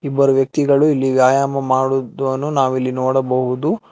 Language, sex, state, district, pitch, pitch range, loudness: Kannada, male, Karnataka, Bangalore, 135 Hz, 130-140 Hz, -17 LUFS